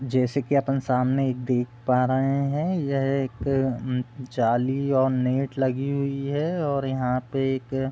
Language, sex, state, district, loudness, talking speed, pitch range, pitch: Hindi, male, Uttar Pradesh, Deoria, -25 LUFS, 175 wpm, 125-140 Hz, 135 Hz